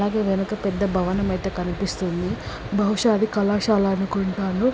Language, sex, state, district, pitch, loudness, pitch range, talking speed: Telugu, female, Andhra Pradesh, Srikakulam, 195 Hz, -23 LUFS, 190-205 Hz, 125 wpm